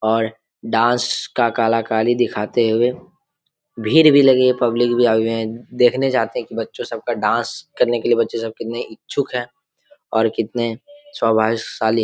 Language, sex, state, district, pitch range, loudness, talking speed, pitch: Hindi, male, Jharkhand, Jamtara, 115-130 Hz, -18 LUFS, 170 wpm, 120 Hz